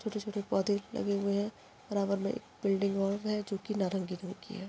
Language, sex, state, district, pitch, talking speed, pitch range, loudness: Hindi, female, Bihar, Muzaffarpur, 200 Hz, 215 wpm, 195-210 Hz, -34 LUFS